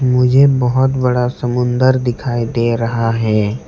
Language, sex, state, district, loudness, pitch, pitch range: Hindi, male, West Bengal, Alipurduar, -15 LUFS, 125 Hz, 115-130 Hz